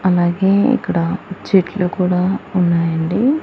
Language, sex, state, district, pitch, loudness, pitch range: Telugu, female, Andhra Pradesh, Annamaya, 185 Hz, -17 LUFS, 175-195 Hz